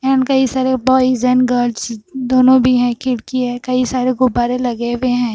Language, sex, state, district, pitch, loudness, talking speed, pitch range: Hindi, female, Punjab, Fazilka, 255 Hz, -15 LUFS, 180 wpm, 245-260 Hz